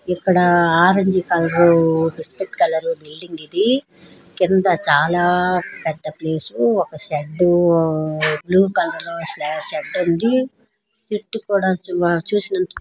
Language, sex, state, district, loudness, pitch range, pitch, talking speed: Telugu, female, Andhra Pradesh, Srikakulam, -18 LUFS, 160-195 Hz, 175 Hz, 90 wpm